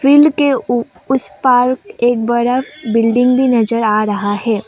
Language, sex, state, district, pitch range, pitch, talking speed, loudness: Hindi, female, Assam, Kamrup Metropolitan, 225-260 Hz, 240 Hz, 155 wpm, -14 LUFS